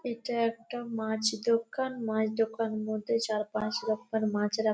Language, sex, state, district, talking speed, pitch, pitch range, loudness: Bengali, female, West Bengal, Malda, 150 wpm, 220 Hz, 215-230 Hz, -31 LUFS